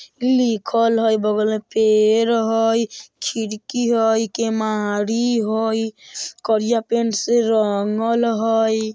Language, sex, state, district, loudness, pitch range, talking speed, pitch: Bajjika, female, Bihar, Vaishali, -19 LUFS, 220-230 Hz, 100 wpm, 225 Hz